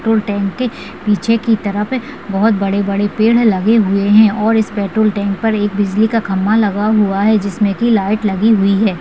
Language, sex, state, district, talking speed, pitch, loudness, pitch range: Hindi, female, Uttarakhand, Tehri Garhwal, 195 wpm, 210 Hz, -14 LUFS, 200-225 Hz